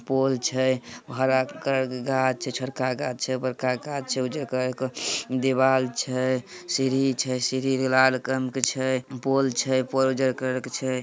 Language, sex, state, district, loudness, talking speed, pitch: Hindi, male, Bihar, Samastipur, -25 LUFS, 180 wpm, 130 Hz